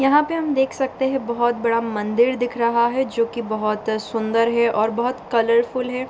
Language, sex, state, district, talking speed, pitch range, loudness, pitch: Hindi, female, Bihar, Bhagalpur, 205 wpm, 230-255 Hz, -20 LUFS, 235 Hz